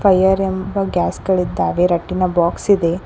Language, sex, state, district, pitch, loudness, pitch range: Kannada, female, Karnataka, Koppal, 185 Hz, -17 LUFS, 175-195 Hz